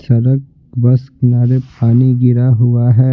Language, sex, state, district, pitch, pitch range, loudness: Hindi, male, Bihar, Patna, 125 Hz, 120-130 Hz, -12 LUFS